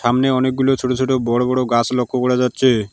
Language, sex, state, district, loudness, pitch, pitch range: Bengali, male, West Bengal, Alipurduar, -17 LUFS, 125 Hz, 120-130 Hz